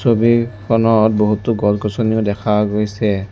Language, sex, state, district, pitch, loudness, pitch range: Assamese, male, Assam, Sonitpur, 105 Hz, -16 LUFS, 105-115 Hz